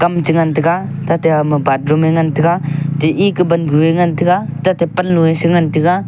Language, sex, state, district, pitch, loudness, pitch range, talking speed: Wancho, male, Arunachal Pradesh, Longding, 165 Hz, -14 LUFS, 155-175 Hz, 195 wpm